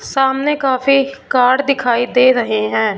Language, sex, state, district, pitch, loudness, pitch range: Hindi, female, Punjab, Fazilka, 255 Hz, -14 LUFS, 240-270 Hz